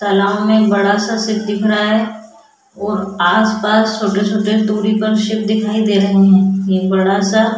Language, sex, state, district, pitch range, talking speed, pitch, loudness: Hindi, female, Goa, North and South Goa, 200-220 Hz, 180 wpm, 210 Hz, -14 LUFS